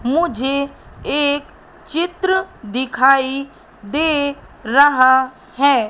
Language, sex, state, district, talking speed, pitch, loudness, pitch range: Hindi, female, Madhya Pradesh, Katni, 70 wpm, 280 Hz, -17 LUFS, 260-295 Hz